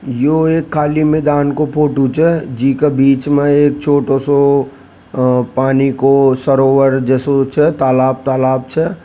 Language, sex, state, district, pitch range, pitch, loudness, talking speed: Rajasthani, male, Rajasthan, Nagaur, 130-150 Hz, 135 Hz, -13 LUFS, 145 wpm